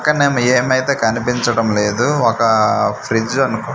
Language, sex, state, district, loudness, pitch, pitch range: Telugu, male, Andhra Pradesh, Manyam, -15 LUFS, 120 Hz, 115-130 Hz